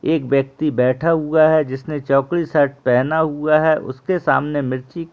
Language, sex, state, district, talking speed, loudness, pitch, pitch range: Hindi, male, Jharkhand, Jamtara, 175 wpm, -18 LUFS, 150 Hz, 135-160 Hz